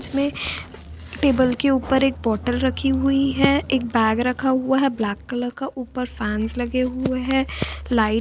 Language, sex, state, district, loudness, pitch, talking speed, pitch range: Hindi, female, Chhattisgarh, Rajnandgaon, -21 LUFS, 255 Hz, 180 wpm, 225-270 Hz